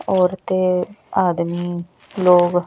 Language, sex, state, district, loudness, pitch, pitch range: Hindi, female, Bihar, West Champaran, -19 LUFS, 180 Hz, 175-185 Hz